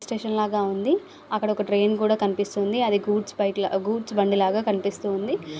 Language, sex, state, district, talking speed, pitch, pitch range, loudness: Telugu, female, Andhra Pradesh, Visakhapatnam, 160 wpm, 205 Hz, 200-215 Hz, -24 LUFS